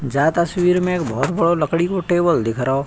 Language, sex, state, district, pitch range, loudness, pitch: Hindi, male, Uttar Pradesh, Budaun, 140-180 Hz, -18 LUFS, 170 Hz